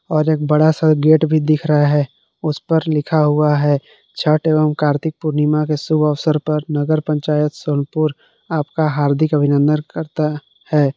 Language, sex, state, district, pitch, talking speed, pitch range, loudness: Hindi, male, Jharkhand, Palamu, 150 Hz, 165 wpm, 150-155 Hz, -17 LUFS